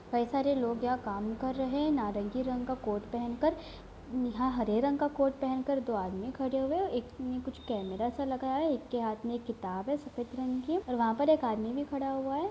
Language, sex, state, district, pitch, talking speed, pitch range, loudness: Hindi, female, Bihar, Gopalganj, 255 Hz, 245 wpm, 235-275 Hz, -33 LUFS